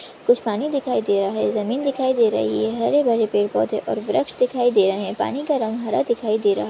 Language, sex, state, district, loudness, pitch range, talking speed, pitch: Hindi, male, Maharashtra, Chandrapur, -21 LUFS, 200-250 Hz, 240 wpm, 225 Hz